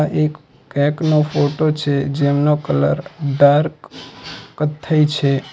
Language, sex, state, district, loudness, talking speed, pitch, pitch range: Gujarati, male, Gujarat, Valsad, -17 LUFS, 110 wpm, 145 Hz, 140-150 Hz